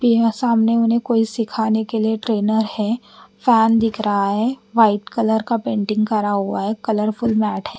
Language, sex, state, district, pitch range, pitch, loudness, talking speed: Hindi, female, Bihar, Patna, 215-230 Hz, 220 Hz, -19 LUFS, 185 wpm